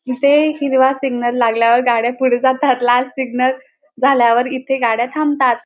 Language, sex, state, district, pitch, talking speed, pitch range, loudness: Marathi, male, Maharashtra, Dhule, 260 Hz, 140 wpm, 240-270 Hz, -15 LUFS